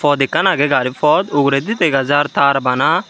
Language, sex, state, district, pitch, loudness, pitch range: Chakma, male, Tripura, Unakoti, 145 Hz, -15 LUFS, 135-160 Hz